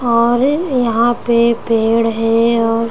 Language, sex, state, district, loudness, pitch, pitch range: Hindi, female, Chhattisgarh, Raigarh, -14 LUFS, 235 Hz, 230-240 Hz